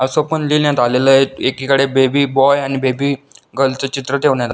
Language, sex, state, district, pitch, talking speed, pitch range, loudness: Marathi, male, Maharashtra, Solapur, 135 Hz, 185 wpm, 135-140 Hz, -15 LUFS